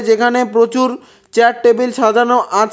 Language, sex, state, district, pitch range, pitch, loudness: Bengali, male, West Bengal, Cooch Behar, 230-245 Hz, 235 Hz, -13 LUFS